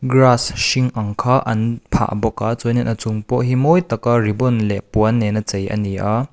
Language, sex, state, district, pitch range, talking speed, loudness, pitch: Mizo, male, Mizoram, Aizawl, 105-125 Hz, 245 wpm, -18 LUFS, 115 Hz